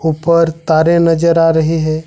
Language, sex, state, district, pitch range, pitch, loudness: Hindi, male, Jharkhand, Ranchi, 160-165 Hz, 165 Hz, -12 LUFS